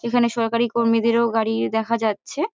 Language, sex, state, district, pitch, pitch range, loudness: Bengali, female, West Bengal, North 24 Parganas, 230 Hz, 225-235 Hz, -21 LUFS